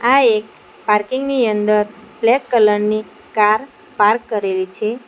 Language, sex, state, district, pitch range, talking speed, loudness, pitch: Gujarati, female, Gujarat, Valsad, 210-245 Hz, 140 wpm, -17 LUFS, 215 Hz